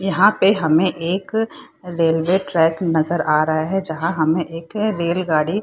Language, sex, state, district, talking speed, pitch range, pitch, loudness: Hindi, female, Bihar, Saharsa, 170 wpm, 160-190 Hz, 170 Hz, -19 LUFS